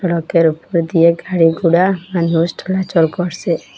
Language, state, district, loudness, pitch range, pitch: Bengali, Assam, Hailakandi, -15 LUFS, 165-180 Hz, 170 Hz